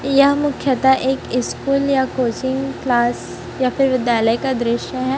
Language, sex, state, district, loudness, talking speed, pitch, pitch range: Hindi, female, Chhattisgarh, Raipur, -18 LUFS, 150 wpm, 260 Hz, 250-275 Hz